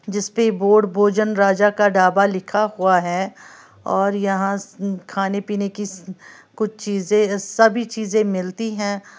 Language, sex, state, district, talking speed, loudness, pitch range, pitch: Hindi, female, Uttar Pradesh, Lalitpur, 135 wpm, -19 LUFS, 195-210 Hz, 200 Hz